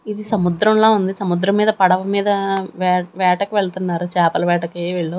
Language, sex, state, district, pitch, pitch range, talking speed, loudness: Telugu, female, Andhra Pradesh, Manyam, 190 Hz, 175-200 Hz, 160 wpm, -17 LUFS